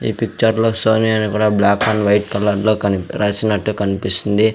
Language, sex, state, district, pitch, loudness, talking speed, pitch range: Telugu, male, Andhra Pradesh, Sri Satya Sai, 105 Hz, -16 LUFS, 170 wpm, 100-110 Hz